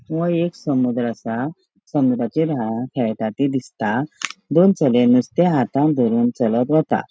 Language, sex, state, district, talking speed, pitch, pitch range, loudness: Konkani, female, Goa, North and South Goa, 125 wpm, 140 Hz, 120-170 Hz, -19 LUFS